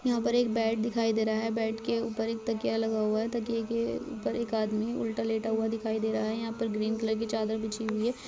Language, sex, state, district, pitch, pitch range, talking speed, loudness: Hindi, female, Uttar Pradesh, Budaun, 225 Hz, 220-230 Hz, 270 wpm, -30 LUFS